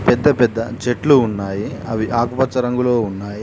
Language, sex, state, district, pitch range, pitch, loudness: Telugu, male, Telangana, Mahabubabad, 110-125 Hz, 120 Hz, -18 LUFS